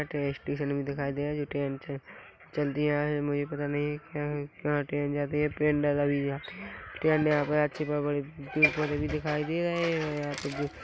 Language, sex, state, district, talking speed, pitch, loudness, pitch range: Hindi, male, Chhattisgarh, Korba, 200 wpm, 145 Hz, -30 LUFS, 145-150 Hz